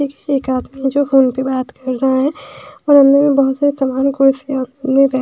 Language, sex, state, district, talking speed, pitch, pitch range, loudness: Hindi, female, Bihar, West Champaran, 195 wpm, 270 Hz, 265-280 Hz, -15 LUFS